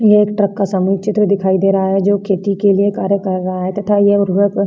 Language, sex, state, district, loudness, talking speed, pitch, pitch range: Hindi, female, Bihar, Vaishali, -15 LUFS, 295 wpm, 200 Hz, 195-205 Hz